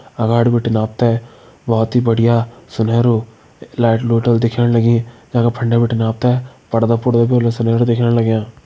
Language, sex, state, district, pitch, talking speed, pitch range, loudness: Hindi, male, Uttarakhand, Uttarkashi, 115 Hz, 150 wpm, 115-120 Hz, -15 LUFS